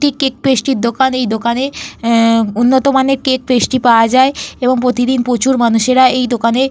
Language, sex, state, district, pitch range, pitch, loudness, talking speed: Bengali, female, Jharkhand, Jamtara, 235-265 Hz, 255 Hz, -13 LUFS, 190 wpm